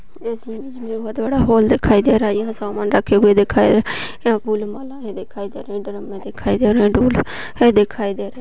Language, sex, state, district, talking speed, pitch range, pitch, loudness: Hindi, female, Maharashtra, Dhule, 200 wpm, 205-230 Hz, 215 Hz, -17 LUFS